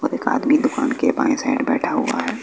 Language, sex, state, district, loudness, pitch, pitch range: Hindi, male, Bihar, West Champaran, -19 LUFS, 275 Hz, 265-280 Hz